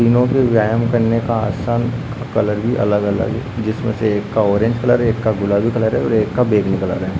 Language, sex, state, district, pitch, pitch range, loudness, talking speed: Hindi, male, Uttarakhand, Uttarkashi, 110 Hz, 105-120 Hz, -17 LUFS, 235 wpm